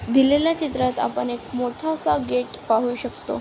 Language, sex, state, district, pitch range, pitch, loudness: Marathi, female, Maharashtra, Aurangabad, 235-285 Hz, 250 Hz, -23 LUFS